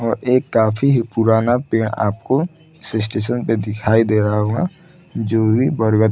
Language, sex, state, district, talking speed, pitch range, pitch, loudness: Hindi, male, Bihar, Saran, 145 wpm, 110-130 Hz, 115 Hz, -17 LUFS